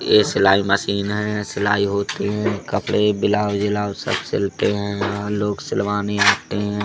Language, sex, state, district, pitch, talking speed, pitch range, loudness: Hindi, male, Madhya Pradesh, Katni, 105 Hz, 155 wpm, 100-105 Hz, -20 LUFS